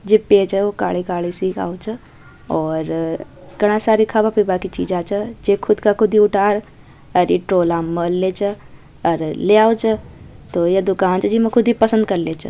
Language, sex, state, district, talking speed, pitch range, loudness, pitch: Marwari, female, Rajasthan, Nagaur, 190 wpm, 180-215 Hz, -17 LUFS, 200 Hz